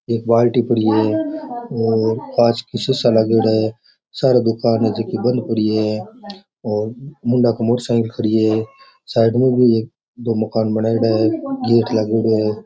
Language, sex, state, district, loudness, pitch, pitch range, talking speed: Rajasthani, male, Rajasthan, Nagaur, -17 LUFS, 115 Hz, 110-125 Hz, 115 wpm